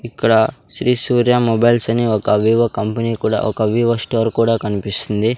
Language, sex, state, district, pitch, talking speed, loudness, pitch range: Telugu, male, Andhra Pradesh, Sri Satya Sai, 115 Hz, 155 wpm, -16 LUFS, 110-120 Hz